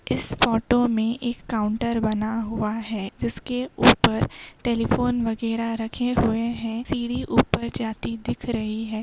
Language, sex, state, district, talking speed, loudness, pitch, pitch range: Hindi, female, Uttar Pradesh, Hamirpur, 140 wpm, -24 LUFS, 230 Hz, 220-240 Hz